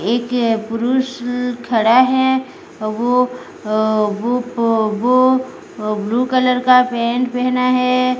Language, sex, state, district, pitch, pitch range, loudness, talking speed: Hindi, female, Odisha, Sambalpur, 245 Hz, 230-255 Hz, -16 LUFS, 95 wpm